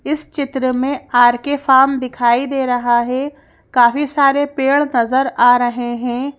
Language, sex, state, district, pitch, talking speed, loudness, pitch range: Hindi, female, Madhya Pradesh, Bhopal, 265 Hz, 150 wpm, -15 LUFS, 245-280 Hz